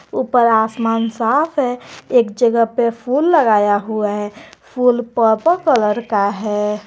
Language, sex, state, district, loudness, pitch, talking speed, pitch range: Hindi, female, Jharkhand, Garhwa, -16 LUFS, 230 Hz, 140 wpm, 215-250 Hz